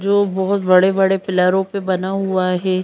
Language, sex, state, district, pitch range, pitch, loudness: Hindi, female, Madhya Pradesh, Bhopal, 185-195 Hz, 190 Hz, -17 LUFS